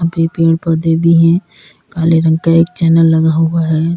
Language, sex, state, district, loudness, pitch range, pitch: Hindi, female, Uttar Pradesh, Lalitpur, -12 LUFS, 160-165 Hz, 165 Hz